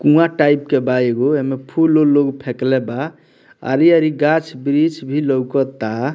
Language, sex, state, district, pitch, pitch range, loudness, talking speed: Bhojpuri, male, Bihar, Muzaffarpur, 140 Hz, 130-155 Hz, -16 LUFS, 145 wpm